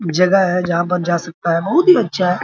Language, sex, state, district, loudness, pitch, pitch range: Hindi, male, Bihar, Araria, -15 LUFS, 180 Hz, 170-190 Hz